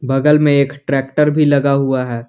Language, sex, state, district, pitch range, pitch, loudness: Hindi, male, Jharkhand, Garhwa, 135-150 Hz, 140 Hz, -14 LUFS